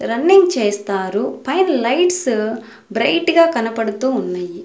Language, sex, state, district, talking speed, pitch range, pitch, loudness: Telugu, female, Andhra Pradesh, Sri Satya Sai, 105 wpm, 210-335 Hz, 230 Hz, -16 LUFS